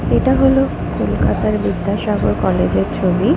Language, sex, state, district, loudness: Bengali, female, West Bengal, Kolkata, -16 LUFS